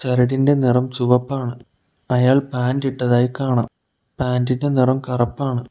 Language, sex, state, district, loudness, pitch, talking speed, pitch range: Malayalam, male, Kerala, Kollam, -19 LUFS, 125 Hz, 105 wpm, 125-135 Hz